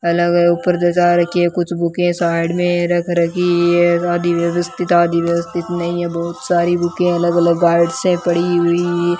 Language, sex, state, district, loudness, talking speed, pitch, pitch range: Hindi, male, Rajasthan, Bikaner, -16 LUFS, 185 wpm, 175 Hz, 170-175 Hz